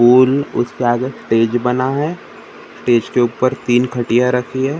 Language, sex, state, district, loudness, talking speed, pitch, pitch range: Hindi, male, Maharashtra, Gondia, -16 LUFS, 175 wpm, 125 Hz, 120-130 Hz